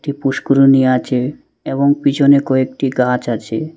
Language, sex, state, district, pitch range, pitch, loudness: Bengali, male, Assam, Hailakandi, 125-140 Hz, 135 Hz, -15 LUFS